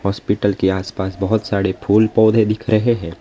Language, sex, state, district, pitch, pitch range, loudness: Hindi, male, West Bengal, Alipurduar, 100 Hz, 95-110 Hz, -17 LUFS